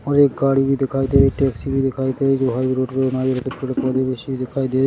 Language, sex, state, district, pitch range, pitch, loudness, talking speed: Hindi, male, Chhattisgarh, Rajnandgaon, 130-135 Hz, 135 Hz, -19 LUFS, 295 wpm